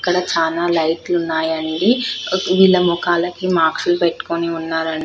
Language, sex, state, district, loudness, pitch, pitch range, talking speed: Telugu, female, Telangana, Karimnagar, -17 LUFS, 170 Hz, 160-180 Hz, 130 wpm